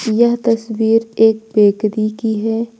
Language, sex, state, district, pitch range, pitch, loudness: Hindi, female, Uttar Pradesh, Lucknow, 215-230 Hz, 225 Hz, -15 LUFS